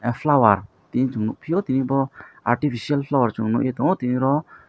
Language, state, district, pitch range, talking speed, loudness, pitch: Kokborok, Tripura, West Tripura, 120-140 Hz, 165 wpm, -22 LUFS, 130 Hz